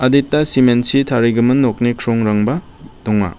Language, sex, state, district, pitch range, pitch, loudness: Garo, male, Meghalaya, West Garo Hills, 115-135 Hz, 120 Hz, -15 LUFS